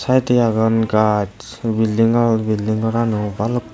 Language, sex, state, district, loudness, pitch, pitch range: Chakma, male, Tripura, West Tripura, -17 LUFS, 110 Hz, 110-115 Hz